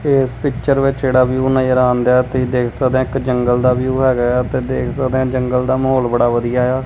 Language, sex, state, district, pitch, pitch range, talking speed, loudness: Punjabi, male, Punjab, Kapurthala, 130 Hz, 125-130 Hz, 235 wpm, -16 LUFS